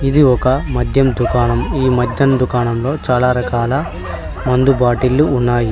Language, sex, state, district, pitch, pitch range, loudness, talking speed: Telugu, male, Telangana, Mahabubabad, 125 Hz, 120-135 Hz, -15 LUFS, 125 wpm